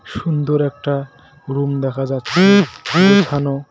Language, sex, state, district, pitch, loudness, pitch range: Bengali, male, West Bengal, Cooch Behar, 145 Hz, -16 LUFS, 135-160 Hz